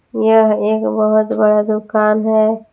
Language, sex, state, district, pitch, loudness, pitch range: Hindi, female, Jharkhand, Palamu, 215 Hz, -14 LUFS, 215-220 Hz